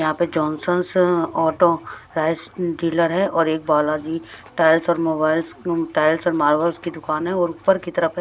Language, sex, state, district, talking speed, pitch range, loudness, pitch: Hindi, male, Bihar, West Champaran, 185 wpm, 160-175 Hz, -20 LUFS, 165 Hz